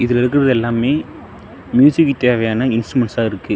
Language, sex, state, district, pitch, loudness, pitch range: Tamil, male, Tamil Nadu, Namakkal, 120 Hz, -15 LUFS, 115-130 Hz